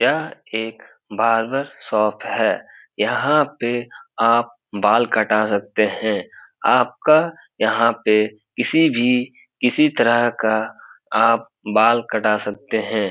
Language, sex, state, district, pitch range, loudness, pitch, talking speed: Hindi, male, Bihar, Supaul, 110-120 Hz, -19 LUFS, 115 Hz, 115 wpm